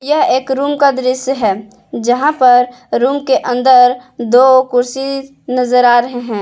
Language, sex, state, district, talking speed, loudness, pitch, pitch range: Hindi, female, Jharkhand, Palamu, 160 wpm, -12 LUFS, 255 Hz, 245-270 Hz